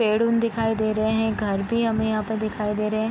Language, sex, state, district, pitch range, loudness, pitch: Hindi, female, Bihar, Vaishali, 215-225 Hz, -23 LUFS, 220 Hz